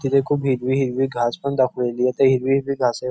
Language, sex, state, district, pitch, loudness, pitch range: Marathi, male, Maharashtra, Nagpur, 130 Hz, -20 LUFS, 125-135 Hz